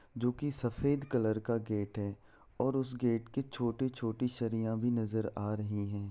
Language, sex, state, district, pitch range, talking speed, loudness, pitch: Hindi, male, Bihar, Saran, 110-125 Hz, 165 wpm, -35 LUFS, 115 Hz